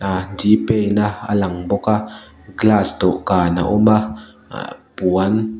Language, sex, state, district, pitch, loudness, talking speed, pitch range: Mizo, male, Mizoram, Aizawl, 105 Hz, -17 LUFS, 160 wpm, 95-105 Hz